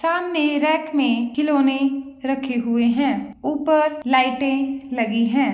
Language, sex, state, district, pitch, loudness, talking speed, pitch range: Hindi, female, Bihar, Begusarai, 270 Hz, -20 LUFS, 130 wpm, 255-295 Hz